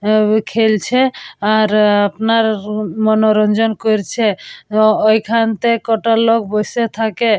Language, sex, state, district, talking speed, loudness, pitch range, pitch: Bengali, female, West Bengal, Purulia, 105 wpm, -15 LUFS, 215-225 Hz, 220 Hz